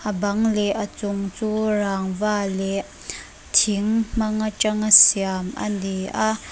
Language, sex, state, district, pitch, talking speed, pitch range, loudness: Mizo, female, Mizoram, Aizawl, 205 Hz, 130 wpm, 195-215 Hz, -20 LUFS